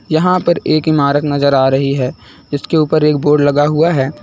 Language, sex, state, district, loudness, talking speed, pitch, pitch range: Hindi, male, Uttar Pradesh, Lucknow, -13 LUFS, 210 wpm, 145 Hz, 140-155 Hz